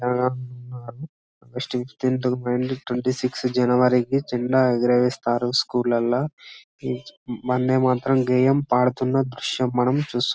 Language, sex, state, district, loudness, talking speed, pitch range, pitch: Telugu, male, Telangana, Karimnagar, -22 LUFS, 110 wpm, 125-130 Hz, 125 Hz